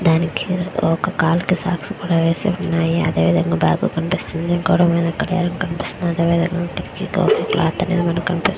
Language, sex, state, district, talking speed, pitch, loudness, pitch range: Telugu, female, Andhra Pradesh, Visakhapatnam, 155 wpm, 170 Hz, -19 LUFS, 165-180 Hz